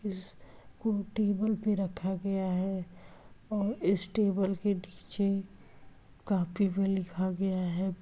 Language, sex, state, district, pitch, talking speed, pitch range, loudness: Hindi, female, Uttar Pradesh, Etah, 195 Hz, 120 wpm, 185-200 Hz, -32 LUFS